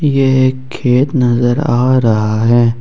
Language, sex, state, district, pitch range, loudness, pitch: Hindi, male, Jharkhand, Ranchi, 120-130 Hz, -12 LUFS, 125 Hz